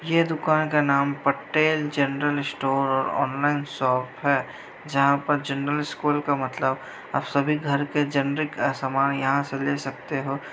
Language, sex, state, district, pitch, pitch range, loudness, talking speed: Hindi, female, Bihar, Sitamarhi, 140 Hz, 135-150 Hz, -24 LUFS, 155 wpm